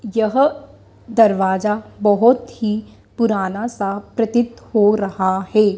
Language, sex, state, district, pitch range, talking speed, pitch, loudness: Hindi, female, Madhya Pradesh, Dhar, 200-235 Hz, 105 wpm, 215 Hz, -18 LUFS